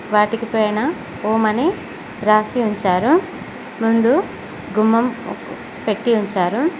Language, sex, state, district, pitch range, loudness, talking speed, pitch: Telugu, female, Telangana, Mahabubabad, 215-245 Hz, -18 LUFS, 90 wpm, 225 Hz